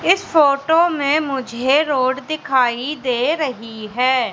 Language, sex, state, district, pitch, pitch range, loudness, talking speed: Hindi, female, Madhya Pradesh, Katni, 275 Hz, 255-310 Hz, -18 LUFS, 125 wpm